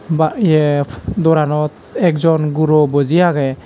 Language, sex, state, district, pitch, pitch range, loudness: Chakma, male, Tripura, Dhalai, 150 Hz, 145-160 Hz, -15 LUFS